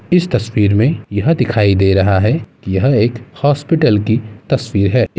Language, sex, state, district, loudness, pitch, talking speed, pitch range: Hindi, male, Uttar Pradesh, Muzaffarnagar, -14 LUFS, 115 Hz, 160 wpm, 105-140 Hz